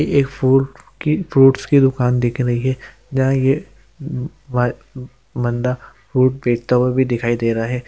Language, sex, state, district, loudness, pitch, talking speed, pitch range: Hindi, male, Chhattisgarh, Jashpur, -18 LUFS, 130 Hz, 150 wpm, 125-135 Hz